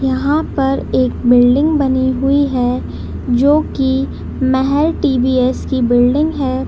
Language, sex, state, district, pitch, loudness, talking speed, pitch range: Hindi, female, Bihar, Madhepura, 265 Hz, -14 LUFS, 125 wpm, 255-280 Hz